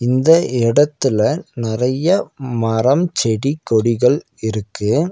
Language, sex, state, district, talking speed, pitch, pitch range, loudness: Tamil, male, Tamil Nadu, Nilgiris, 80 wpm, 125 Hz, 115-150 Hz, -17 LUFS